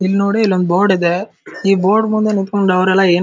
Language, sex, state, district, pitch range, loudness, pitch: Kannada, male, Karnataka, Dharwad, 185-205 Hz, -14 LUFS, 195 Hz